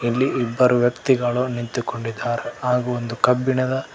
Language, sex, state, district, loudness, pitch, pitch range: Kannada, male, Karnataka, Koppal, -21 LUFS, 125 Hz, 120-125 Hz